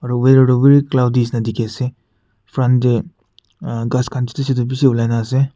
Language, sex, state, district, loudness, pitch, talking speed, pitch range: Nagamese, male, Nagaland, Kohima, -16 LUFS, 125 Hz, 175 wpm, 115-130 Hz